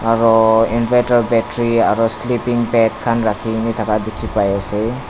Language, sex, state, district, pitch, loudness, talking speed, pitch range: Nagamese, male, Nagaland, Dimapur, 115 Hz, -15 LUFS, 140 wpm, 110-120 Hz